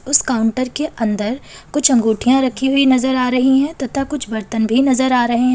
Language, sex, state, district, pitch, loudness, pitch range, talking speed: Hindi, female, Uttar Pradesh, Lalitpur, 255 Hz, -16 LUFS, 240-270 Hz, 215 wpm